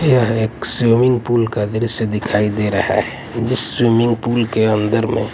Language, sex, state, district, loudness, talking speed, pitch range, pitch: Hindi, male, Delhi, New Delhi, -17 LUFS, 180 wpm, 110-120 Hz, 115 Hz